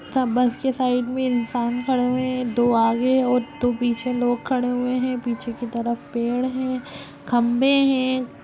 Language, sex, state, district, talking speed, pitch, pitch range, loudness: Hindi, female, Bihar, Lakhisarai, 180 wpm, 250 Hz, 240-255 Hz, -22 LUFS